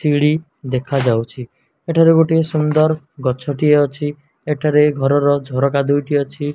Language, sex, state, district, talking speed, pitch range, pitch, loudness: Odia, male, Odisha, Malkangiri, 110 wpm, 140-155 Hz, 145 Hz, -16 LUFS